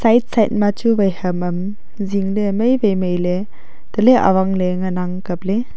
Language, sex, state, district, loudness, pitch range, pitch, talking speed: Wancho, female, Arunachal Pradesh, Longding, -17 LUFS, 185-215 Hz, 200 Hz, 165 wpm